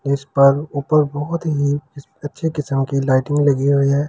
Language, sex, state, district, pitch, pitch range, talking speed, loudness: Hindi, male, Delhi, New Delhi, 140 Hz, 140-150 Hz, 190 wpm, -18 LUFS